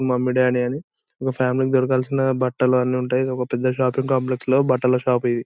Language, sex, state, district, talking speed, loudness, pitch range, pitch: Telugu, male, Andhra Pradesh, Anantapur, 175 wpm, -20 LUFS, 125-130 Hz, 130 Hz